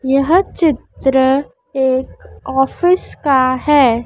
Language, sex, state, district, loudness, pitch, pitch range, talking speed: Hindi, female, Madhya Pradesh, Dhar, -15 LUFS, 270 Hz, 260-310 Hz, 90 wpm